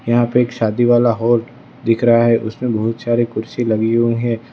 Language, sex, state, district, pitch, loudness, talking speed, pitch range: Hindi, male, Gujarat, Valsad, 120 Hz, -16 LUFS, 210 wpm, 115-120 Hz